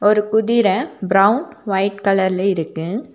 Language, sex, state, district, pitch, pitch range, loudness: Tamil, female, Tamil Nadu, Nilgiris, 200 Hz, 190-220 Hz, -17 LUFS